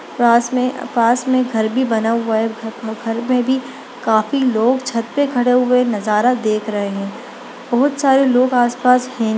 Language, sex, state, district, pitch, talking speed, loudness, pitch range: Hindi, female, Bihar, Darbhanga, 240 Hz, 185 wpm, -17 LUFS, 225-250 Hz